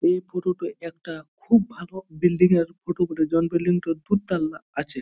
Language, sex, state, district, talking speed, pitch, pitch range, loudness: Bengali, male, West Bengal, Jhargram, 180 wpm, 175 Hz, 165-180 Hz, -23 LUFS